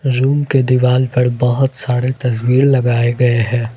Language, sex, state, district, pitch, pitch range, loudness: Hindi, male, Jharkhand, Ranchi, 125 Hz, 120-130 Hz, -14 LUFS